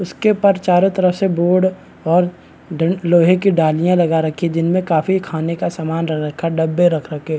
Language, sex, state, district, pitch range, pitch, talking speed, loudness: Hindi, male, Bihar, Madhepura, 160-185 Hz, 170 Hz, 195 wpm, -16 LUFS